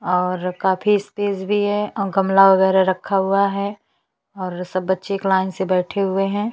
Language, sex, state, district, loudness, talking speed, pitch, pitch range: Hindi, female, Chhattisgarh, Bastar, -19 LUFS, 195 wpm, 195 Hz, 185-200 Hz